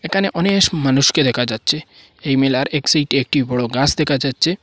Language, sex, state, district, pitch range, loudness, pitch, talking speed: Bengali, male, Assam, Hailakandi, 135-160 Hz, -16 LUFS, 140 Hz, 180 wpm